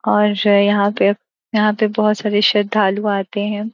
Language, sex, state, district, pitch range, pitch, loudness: Hindi, female, Uttar Pradesh, Gorakhpur, 205-210 Hz, 210 Hz, -16 LUFS